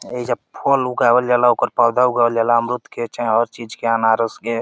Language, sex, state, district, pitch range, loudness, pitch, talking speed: Bhojpuri, male, Uttar Pradesh, Deoria, 115-125 Hz, -18 LUFS, 120 Hz, 180 wpm